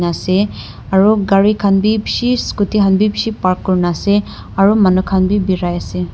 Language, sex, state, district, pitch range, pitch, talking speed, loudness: Nagamese, female, Nagaland, Dimapur, 185-205 Hz, 195 Hz, 195 wpm, -14 LUFS